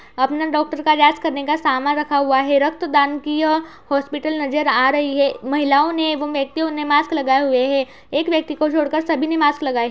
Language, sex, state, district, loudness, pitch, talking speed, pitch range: Hindi, female, Uttar Pradesh, Budaun, -18 LUFS, 295 Hz, 235 wpm, 280-310 Hz